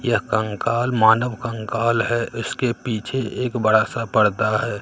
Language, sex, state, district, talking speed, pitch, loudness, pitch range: Hindi, male, Bihar, Katihar, 150 wpm, 115 Hz, -20 LUFS, 110-120 Hz